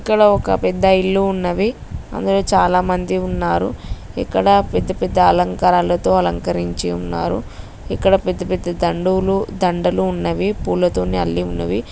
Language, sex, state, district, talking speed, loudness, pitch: Telugu, female, Telangana, Nalgonda, 110 wpm, -17 LUFS, 170 Hz